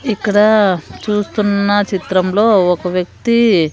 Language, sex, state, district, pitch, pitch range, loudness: Telugu, female, Andhra Pradesh, Sri Satya Sai, 205 Hz, 185-210 Hz, -14 LUFS